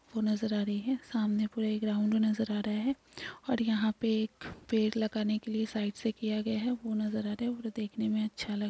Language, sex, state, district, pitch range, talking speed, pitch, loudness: Hindi, female, Uttar Pradesh, Hamirpur, 215-225 Hz, 250 wpm, 220 Hz, -32 LUFS